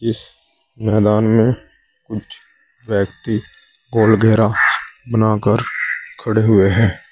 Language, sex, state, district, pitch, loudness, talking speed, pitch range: Hindi, male, Uttar Pradesh, Saharanpur, 110 Hz, -16 LUFS, 100 wpm, 105-115 Hz